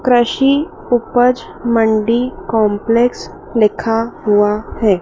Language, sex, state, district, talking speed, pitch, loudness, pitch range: Hindi, female, Madhya Pradesh, Dhar, 85 wpm, 230 Hz, -15 LUFS, 215-245 Hz